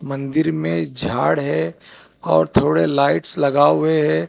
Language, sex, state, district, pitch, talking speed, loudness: Hindi, male, Telangana, Hyderabad, 140 Hz, 140 wpm, -18 LUFS